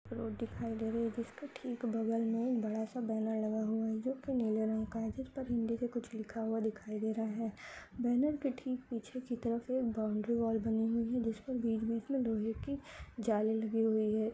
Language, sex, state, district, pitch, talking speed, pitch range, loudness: Hindi, female, Chhattisgarh, Sukma, 230 Hz, 220 wpm, 220-245 Hz, -36 LUFS